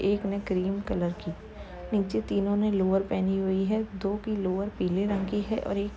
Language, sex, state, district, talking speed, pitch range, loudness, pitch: Hindi, female, Uttar Pradesh, Jalaun, 220 wpm, 190-205 Hz, -29 LUFS, 195 Hz